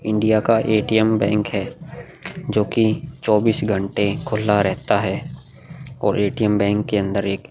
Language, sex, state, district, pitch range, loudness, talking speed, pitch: Hindi, male, Goa, North and South Goa, 100-115 Hz, -20 LUFS, 150 wpm, 110 Hz